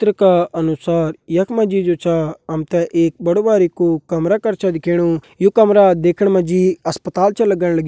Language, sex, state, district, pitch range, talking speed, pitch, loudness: Hindi, male, Uttarakhand, Uttarkashi, 165-195 Hz, 200 wpm, 175 Hz, -16 LUFS